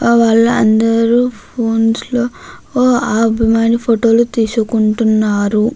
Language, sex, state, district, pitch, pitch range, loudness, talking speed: Telugu, female, Andhra Pradesh, Krishna, 230 Hz, 225-235 Hz, -13 LUFS, 85 wpm